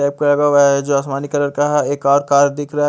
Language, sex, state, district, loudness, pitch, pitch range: Hindi, male, Haryana, Charkhi Dadri, -15 LUFS, 145 Hz, 140-145 Hz